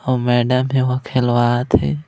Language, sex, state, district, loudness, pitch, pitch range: Chhattisgarhi, male, Chhattisgarh, Raigarh, -17 LUFS, 125 Hz, 120-125 Hz